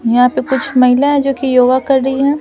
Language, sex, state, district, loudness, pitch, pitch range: Hindi, female, Bihar, Patna, -12 LUFS, 265 Hz, 250-275 Hz